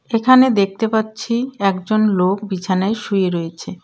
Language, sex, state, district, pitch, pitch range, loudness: Bengali, female, West Bengal, Cooch Behar, 210 Hz, 190-225 Hz, -17 LUFS